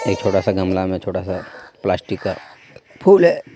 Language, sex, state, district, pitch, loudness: Hindi, male, Jharkhand, Deoghar, 95 Hz, -18 LUFS